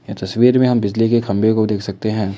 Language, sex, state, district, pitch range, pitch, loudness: Hindi, male, Assam, Kamrup Metropolitan, 100-115 Hz, 110 Hz, -16 LUFS